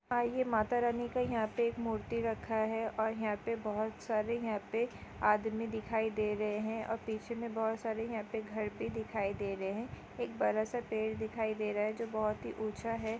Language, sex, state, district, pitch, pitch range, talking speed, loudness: Hindi, female, Chhattisgarh, Jashpur, 220 Hz, 215-230 Hz, 215 wpm, -36 LUFS